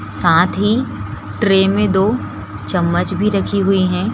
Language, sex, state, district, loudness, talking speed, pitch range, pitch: Hindi, female, Bihar, Begusarai, -16 LUFS, 145 wpm, 175-205 Hz, 195 Hz